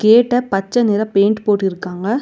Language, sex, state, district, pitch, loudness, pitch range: Tamil, female, Tamil Nadu, Nilgiris, 210 Hz, -16 LUFS, 195-235 Hz